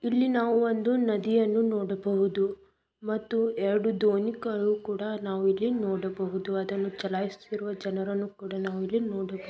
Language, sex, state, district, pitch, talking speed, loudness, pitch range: Kannada, female, Karnataka, Belgaum, 205 Hz, 120 wpm, -28 LUFS, 195-220 Hz